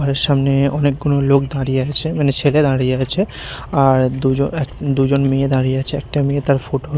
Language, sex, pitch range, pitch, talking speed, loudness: Bengali, male, 135-145 Hz, 140 Hz, 170 wpm, -17 LUFS